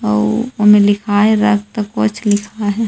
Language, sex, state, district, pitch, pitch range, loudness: Chhattisgarhi, female, Chhattisgarh, Rajnandgaon, 205 Hz, 205-210 Hz, -14 LUFS